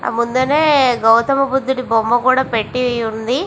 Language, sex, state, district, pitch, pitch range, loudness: Telugu, female, Andhra Pradesh, Visakhapatnam, 250 Hz, 230-265 Hz, -15 LUFS